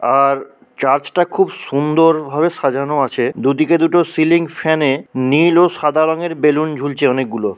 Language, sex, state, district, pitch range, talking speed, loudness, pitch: Bengali, male, West Bengal, Purulia, 140-165 Hz, 140 wpm, -15 LUFS, 150 Hz